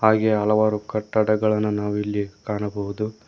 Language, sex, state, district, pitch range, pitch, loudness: Kannada, male, Karnataka, Koppal, 105-110 Hz, 105 Hz, -22 LUFS